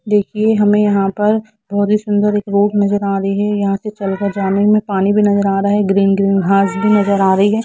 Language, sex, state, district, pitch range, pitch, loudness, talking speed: Hindi, female, Jharkhand, Jamtara, 195-210 Hz, 205 Hz, -14 LUFS, 260 wpm